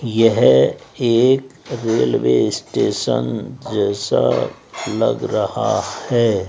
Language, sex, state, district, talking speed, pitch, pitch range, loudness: Hindi, male, Rajasthan, Jaipur, 75 wpm, 115 Hz, 105-125 Hz, -18 LUFS